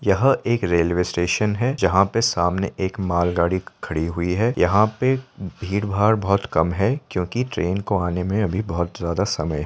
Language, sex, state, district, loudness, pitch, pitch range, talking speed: Hindi, male, Uttar Pradesh, Jyotiba Phule Nagar, -21 LUFS, 95 Hz, 85-105 Hz, 190 wpm